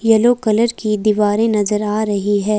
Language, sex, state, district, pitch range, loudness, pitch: Hindi, female, Himachal Pradesh, Shimla, 210-225 Hz, -16 LUFS, 215 Hz